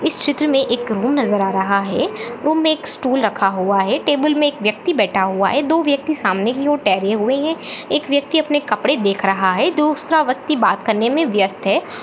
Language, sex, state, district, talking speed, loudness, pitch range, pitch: Hindi, female, Chhattisgarh, Jashpur, 225 wpm, -17 LUFS, 200-295 Hz, 255 Hz